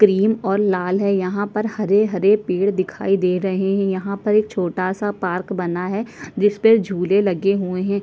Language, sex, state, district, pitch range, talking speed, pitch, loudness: Hindi, female, Chhattisgarh, Sukma, 185-205 Hz, 185 wpm, 195 Hz, -19 LUFS